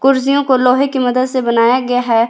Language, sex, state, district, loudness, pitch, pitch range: Hindi, female, Jharkhand, Ranchi, -13 LUFS, 255 Hz, 245-265 Hz